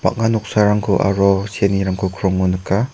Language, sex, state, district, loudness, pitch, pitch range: Garo, male, Meghalaya, West Garo Hills, -17 LUFS, 100 Hz, 95-105 Hz